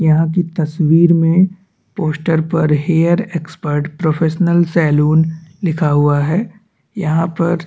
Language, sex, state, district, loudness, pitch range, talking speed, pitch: Hindi, male, Chhattisgarh, Bastar, -15 LUFS, 155-175 Hz, 115 wpm, 165 Hz